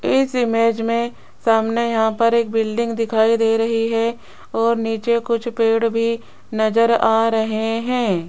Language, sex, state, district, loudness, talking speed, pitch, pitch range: Hindi, female, Rajasthan, Jaipur, -19 LUFS, 150 wpm, 230 Hz, 225-235 Hz